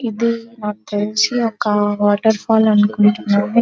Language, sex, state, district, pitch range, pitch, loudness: Telugu, female, Andhra Pradesh, Anantapur, 205-230 Hz, 210 Hz, -16 LUFS